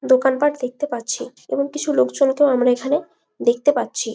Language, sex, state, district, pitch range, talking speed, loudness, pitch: Bengali, female, West Bengal, Malda, 245-290 Hz, 160 wpm, -20 LUFS, 265 Hz